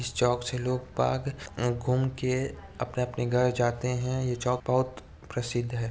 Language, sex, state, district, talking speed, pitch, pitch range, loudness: Hindi, male, Chhattisgarh, Bastar, 160 wpm, 125 Hz, 120-125 Hz, -29 LUFS